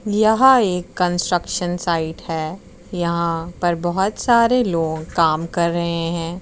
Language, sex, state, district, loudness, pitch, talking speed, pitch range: Hindi, female, Uttar Pradesh, Muzaffarnagar, -19 LUFS, 175 Hz, 130 wpm, 165-190 Hz